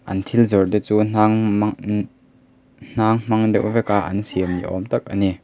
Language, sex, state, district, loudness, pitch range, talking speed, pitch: Mizo, male, Mizoram, Aizawl, -19 LUFS, 95-110 Hz, 210 wpm, 105 Hz